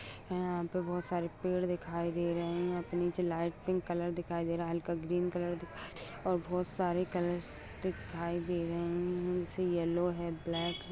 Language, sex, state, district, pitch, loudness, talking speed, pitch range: Hindi, female, Bihar, Jahanabad, 175 Hz, -36 LUFS, 205 wpm, 170-180 Hz